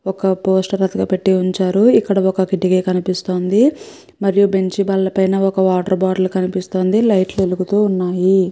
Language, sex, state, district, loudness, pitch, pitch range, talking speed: Telugu, female, Andhra Pradesh, Krishna, -16 LUFS, 190 Hz, 185-195 Hz, 140 wpm